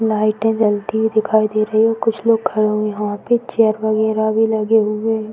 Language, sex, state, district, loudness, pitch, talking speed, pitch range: Hindi, female, Uttar Pradesh, Varanasi, -17 LUFS, 220 Hz, 235 wpm, 215-225 Hz